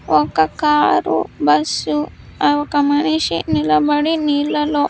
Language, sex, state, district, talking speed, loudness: Telugu, female, Andhra Pradesh, Sri Satya Sai, 100 wpm, -16 LUFS